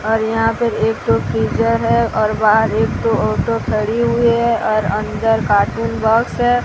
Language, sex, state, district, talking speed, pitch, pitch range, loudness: Hindi, female, Odisha, Sambalpur, 180 wpm, 220 Hz, 155-225 Hz, -16 LUFS